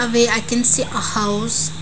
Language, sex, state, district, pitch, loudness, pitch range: English, female, Arunachal Pradesh, Lower Dibang Valley, 225 Hz, -17 LUFS, 210-240 Hz